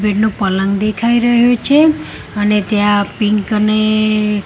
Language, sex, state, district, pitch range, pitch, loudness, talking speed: Gujarati, female, Gujarat, Gandhinagar, 205-225 Hz, 215 Hz, -13 LUFS, 105 wpm